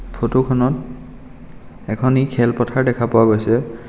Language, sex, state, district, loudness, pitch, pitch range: Assamese, male, Assam, Kamrup Metropolitan, -17 LUFS, 120 Hz, 115-130 Hz